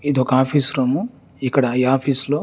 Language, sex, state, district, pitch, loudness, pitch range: Telugu, male, Andhra Pradesh, Chittoor, 135 Hz, -19 LUFS, 130-145 Hz